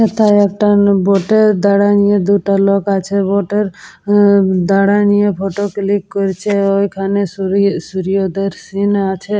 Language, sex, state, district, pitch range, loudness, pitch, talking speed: Bengali, female, West Bengal, Purulia, 195-205 Hz, -13 LUFS, 200 Hz, 140 wpm